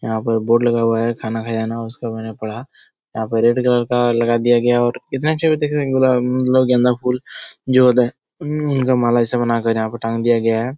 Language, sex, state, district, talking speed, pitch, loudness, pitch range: Hindi, male, Bihar, Jahanabad, 230 wpm, 120 Hz, -17 LUFS, 115-125 Hz